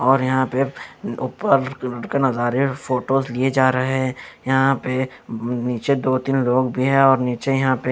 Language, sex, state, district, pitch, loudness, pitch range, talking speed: Hindi, male, Chandigarh, Chandigarh, 130 Hz, -20 LUFS, 125-135 Hz, 165 wpm